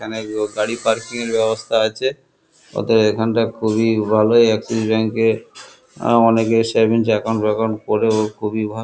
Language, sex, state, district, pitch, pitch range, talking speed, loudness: Bengali, male, West Bengal, Kolkata, 110 Hz, 110-115 Hz, 140 wpm, -18 LUFS